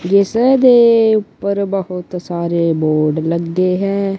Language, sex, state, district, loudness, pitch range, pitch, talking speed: Punjabi, female, Punjab, Kapurthala, -14 LUFS, 170-200 Hz, 190 Hz, 115 wpm